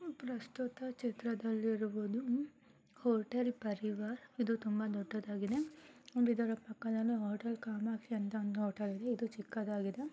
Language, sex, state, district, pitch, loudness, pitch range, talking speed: Kannada, male, Karnataka, Gulbarga, 225 Hz, -39 LUFS, 215-245 Hz, 100 wpm